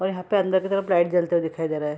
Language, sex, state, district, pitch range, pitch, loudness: Hindi, female, Bihar, Kishanganj, 165-190 Hz, 175 Hz, -23 LUFS